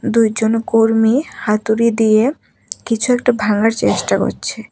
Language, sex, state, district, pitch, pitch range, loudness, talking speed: Bengali, female, Tripura, West Tripura, 225 Hz, 220-235 Hz, -15 LUFS, 115 wpm